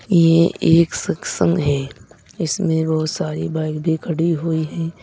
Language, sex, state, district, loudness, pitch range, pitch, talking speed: Hindi, male, Uttar Pradesh, Saharanpur, -19 LUFS, 155-165 Hz, 160 Hz, 145 wpm